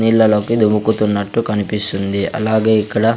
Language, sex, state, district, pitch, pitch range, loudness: Telugu, male, Andhra Pradesh, Sri Satya Sai, 110 Hz, 105-110 Hz, -16 LUFS